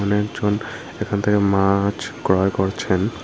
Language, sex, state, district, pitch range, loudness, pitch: Bengali, male, Tripura, Unakoti, 95-105 Hz, -20 LUFS, 100 Hz